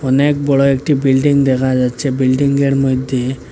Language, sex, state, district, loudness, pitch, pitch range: Bengali, male, Assam, Hailakandi, -14 LUFS, 135 Hz, 130-140 Hz